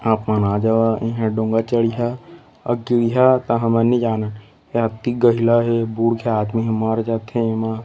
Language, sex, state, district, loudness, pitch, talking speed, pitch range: Chhattisgarhi, male, Chhattisgarh, Korba, -19 LUFS, 115 Hz, 155 wpm, 110-120 Hz